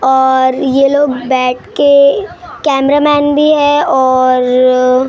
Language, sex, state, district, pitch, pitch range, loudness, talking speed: Hindi, female, Maharashtra, Gondia, 265 Hz, 255-290 Hz, -10 LUFS, 105 wpm